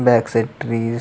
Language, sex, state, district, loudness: Telugu, male, Andhra Pradesh, Krishna, -20 LUFS